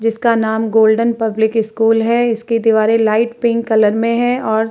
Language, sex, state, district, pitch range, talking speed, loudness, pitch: Hindi, female, Uttar Pradesh, Muzaffarnagar, 220-230 Hz, 190 wpm, -14 LUFS, 225 Hz